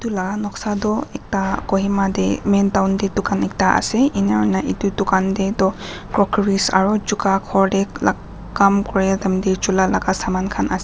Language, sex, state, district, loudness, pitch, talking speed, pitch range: Nagamese, female, Nagaland, Kohima, -18 LUFS, 195 Hz, 185 wpm, 190-200 Hz